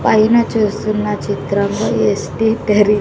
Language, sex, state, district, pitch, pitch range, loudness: Telugu, female, Andhra Pradesh, Sri Satya Sai, 210 Hz, 205-220 Hz, -16 LUFS